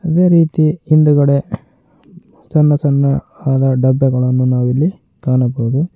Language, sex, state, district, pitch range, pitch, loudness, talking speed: Kannada, male, Karnataka, Koppal, 130-155 Hz, 140 Hz, -14 LUFS, 100 wpm